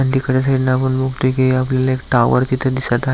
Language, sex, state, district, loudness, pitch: Marathi, male, Maharashtra, Aurangabad, -16 LUFS, 130 Hz